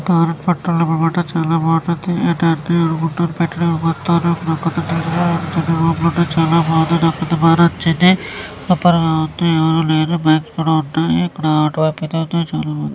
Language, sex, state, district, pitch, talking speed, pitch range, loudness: Telugu, female, Andhra Pradesh, Srikakulam, 165 Hz, 80 wpm, 160-170 Hz, -16 LUFS